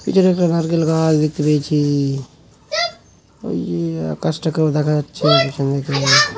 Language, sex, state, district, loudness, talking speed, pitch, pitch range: Bengali, male, West Bengal, Malda, -18 LUFS, 120 wpm, 150 Hz, 140-165 Hz